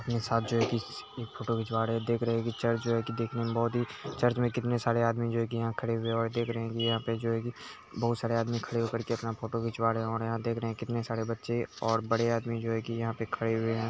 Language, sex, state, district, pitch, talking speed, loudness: Hindi, male, Bihar, Araria, 115 Hz, 285 wpm, -31 LUFS